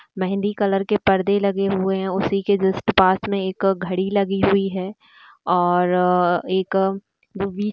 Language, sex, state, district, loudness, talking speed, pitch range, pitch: Hindi, female, Bihar, East Champaran, -20 LUFS, 165 wpm, 190-200 Hz, 195 Hz